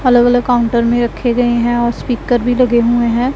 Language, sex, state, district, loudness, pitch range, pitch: Hindi, female, Punjab, Pathankot, -13 LUFS, 235-245 Hz, 240 Hz